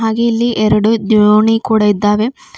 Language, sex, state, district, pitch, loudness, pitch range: Kannada, female, Karnataka, Bidar, 220 Hz, -12 LUFS, 210-230 Hz